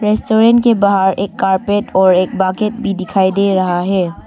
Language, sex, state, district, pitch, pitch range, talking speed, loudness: Hindi, female, Arunachal Pradesh, Longding, 195 Hz, 190-210 Hz, 180 wpm, -13 LUFS